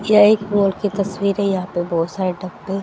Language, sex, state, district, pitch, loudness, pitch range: Hindi, female, Haryana, Jhajjar, 195 Hz, -19 LUFS, 185-205 Hz